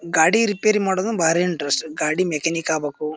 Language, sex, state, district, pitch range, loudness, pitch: Kannada, male, Karnataka, Bijapur, 155-190 Hz, -20 LUFS, 165 Hz